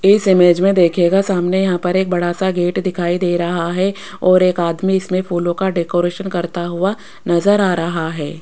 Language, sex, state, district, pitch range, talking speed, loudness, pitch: Hindi, female, Rajasthan, Jaipur, 175-190 Hz, 200 wpm, -16 LUFS, 180 Hz